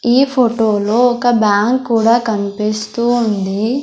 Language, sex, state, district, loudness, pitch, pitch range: Telugu, female, Andhra Pradesh, Sri Satya Sai, -14 LUFS, 230 Hz, 210-245 Hz